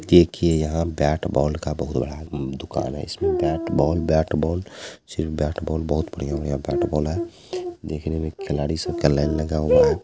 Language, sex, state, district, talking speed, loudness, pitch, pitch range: Hindi, male, Bihar, Jamui, 185 wpm, -23 LUFS, 80 Hz, 75-80 Hz